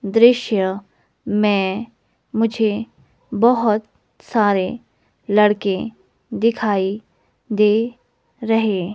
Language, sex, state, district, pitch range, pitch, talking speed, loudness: Hindi, female, Himachal Pradesh, Shimla, 200-225 Hz, 215 Hz, 60 wpm, -19 LUFS